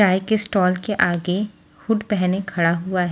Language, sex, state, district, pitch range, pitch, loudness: Hindi, female, Haryana, Jhajjar, 180-210 Hz, 190 Hz, -20 LUFS